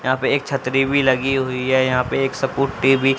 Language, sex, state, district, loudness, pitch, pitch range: Hindi, female, Haryana, Jhajjar, -19 LUFS, 135 Hz, 130-135 Hz